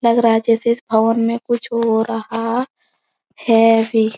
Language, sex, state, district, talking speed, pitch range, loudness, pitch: Hindi, female, Bihar, Supaul, 170 wpm, 225-235 Hz, -16 LUFS, 230 Hz